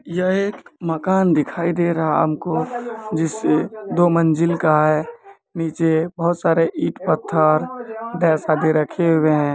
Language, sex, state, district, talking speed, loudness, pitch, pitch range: Maithili, male, Bihar, Kishanganj, 140 wpm, -19 LUFS, 170 Hz, 155-185 Hz